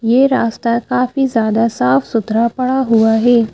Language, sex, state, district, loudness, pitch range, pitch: Hindi, female, Madhya Pradesh, Bhopal, -14 LUFS, 225-250 Hz, 235 Hz